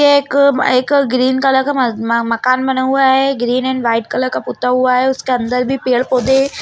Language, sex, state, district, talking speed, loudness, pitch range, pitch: Hindi, female, Bihar, Lakhisarai, 215 wpm, -14 LUFS, 245-270 Hz, 255 Hz